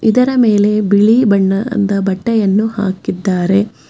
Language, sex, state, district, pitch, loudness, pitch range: Kannada, female, Karnataka, Bangalore, 205 Hz, -13 LUFS, 195-220 Hz